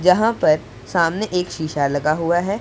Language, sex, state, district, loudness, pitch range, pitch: Hindi, male, Punjab, Pathankot, -19 LUFS, 155-185 Hz, 170 Hz